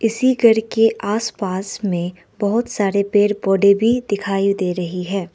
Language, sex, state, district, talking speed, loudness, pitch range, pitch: Hindi, female, Arunachal Pradesh, Lower Dibang Valley, 155 wpm, -18 LUFS, 195-225 Hz, 200 Hz